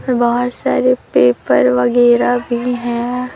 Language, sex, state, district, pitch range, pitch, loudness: Hindi, female, Chhattisgarh, Raipur, 235-245 Hz, 240 Hz, -14 LUFS